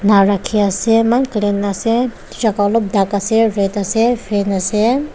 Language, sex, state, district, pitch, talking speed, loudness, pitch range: Nagamese, female, Nagaland, Dimapur, 210 Hz, 140 wpm, -16 LUFS, 200-230 Hz